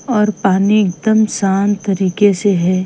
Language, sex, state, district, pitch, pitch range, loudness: Hindi, female, Himachal Pradesh, Shimla, 200 Hz, 190-210 Hz, -14 LUFS